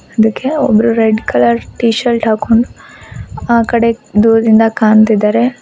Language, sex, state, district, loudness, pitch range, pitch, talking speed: Kannada, female, Karnataka, Koppal, -11 LUFS, 215-235 Hz, 225 Hz, 115 wpm